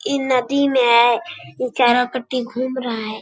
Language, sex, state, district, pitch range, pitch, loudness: Hindi, female, Bihar, Bhagalpur, 240-260 Hz, 255 Hz, -18 LUFS